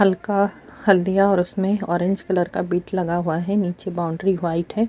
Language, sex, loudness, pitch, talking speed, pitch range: Urdu, female, -21 LUFS, 190 Hz, 195 wpm, 175-200 Hz